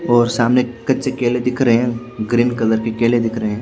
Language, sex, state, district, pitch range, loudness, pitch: Hindi, male, Haryana, Jhajjar, 115-120 Hz, -17 LUFS, 120 Hz